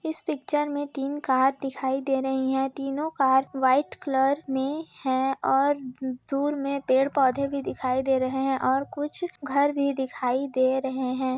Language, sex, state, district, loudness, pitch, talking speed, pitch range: Hindi, female, Chhattisgarh, Raigarh, -26 LUFS, 270 Hz, 175 wpm, 265-285 Hz